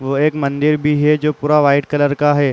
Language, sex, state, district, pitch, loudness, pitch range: Hindi, male, Uttar Pradesh, Muzaffarnagar, 145 Hz, -15 LUFS, 140-150 Hz